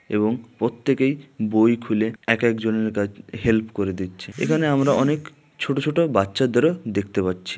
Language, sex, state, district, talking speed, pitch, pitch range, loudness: Bengali, male, West Bengal, Malda, 140 wpm, 115 Hz, 110-140 Hz, -22 LUFS